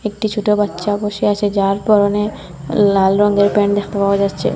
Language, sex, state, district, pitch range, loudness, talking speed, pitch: Bengali, female, Assam, Hailakandi, 200-210 Hz, -16 LUFS, 170 wpm, 205 Hz